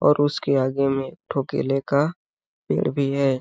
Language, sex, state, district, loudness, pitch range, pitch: Hindi, male, Chhattisgarh, Balrampur, -23 LUFS, 135-145 Hz, 140 Hz